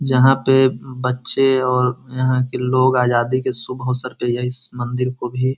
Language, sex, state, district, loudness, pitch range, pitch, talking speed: Hindi, male, Bihar, Muzaffarpur, -18 LUFS, 125-130 Hz, 125 Hz, 195 wpm